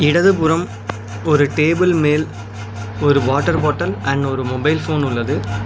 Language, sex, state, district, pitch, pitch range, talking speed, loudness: Tamil, male, Tamil Nadu, Nilgiris, 135 Hz, 105-155 Hz, 140 wpm, -17 LUFS